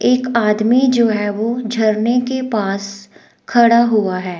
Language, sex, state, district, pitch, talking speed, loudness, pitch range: Hindi, female, Himachal Pradesh, Shimla, 230 Hz, 150 wpm, -15 LUFS, 210-240 Hz